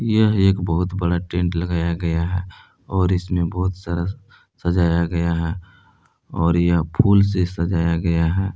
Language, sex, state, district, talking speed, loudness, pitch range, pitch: Hindi, male, Jharkhand, Palamu, 155 wpm, -20 LUFS, 85-95 Hz, 90 Hz